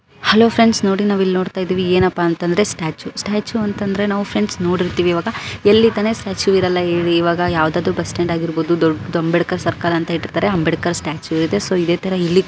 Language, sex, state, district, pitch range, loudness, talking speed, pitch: Kannada, female, Karnataka, Belgaum, 170-200 Hz, -17 LUFS, 185 wpm, 180 Hz